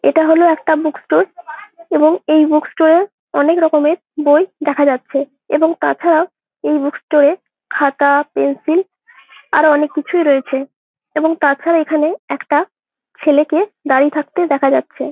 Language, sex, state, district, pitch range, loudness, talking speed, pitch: Bengali, female, West Bengal, Malda, 290-330 Hz, -14 LUFS, 155 wpm, 310 Hz